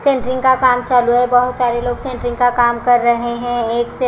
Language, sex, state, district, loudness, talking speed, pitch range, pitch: Hindi, female, Punjab, Kapurthala, -15 LUFS, 220 wpm, 240-250 Hz, 245 Hz